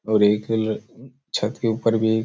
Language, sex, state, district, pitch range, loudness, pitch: Hindi, male, Chhattisgarh, Raigarh, 110-115 Hz, -22 LUFS, 110 Hz